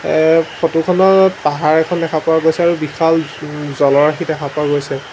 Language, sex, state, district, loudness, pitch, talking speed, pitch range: Assamese, male, Assam, Sonitpur, -14 LUFS, 160 Hz, 165 wpm, 150-165 Hz